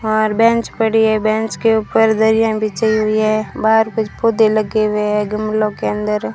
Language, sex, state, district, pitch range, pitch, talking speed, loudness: Hindi, female, Rajasthan, Bikaner, 215-220 Hz, 215 Hz, 190 wpm, -15 LUFS